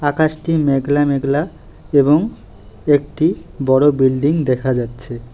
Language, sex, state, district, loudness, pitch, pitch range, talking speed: Bengali, male, West Bengal, Alipurduar, -16 LUFS, 140 Hz, 130-150 Hz, 100 wpm